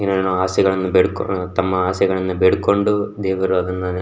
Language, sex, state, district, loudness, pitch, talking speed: Kannada, male, Karnataka, Shimoga, -18 LUFS, 95 Hz, 120 wpm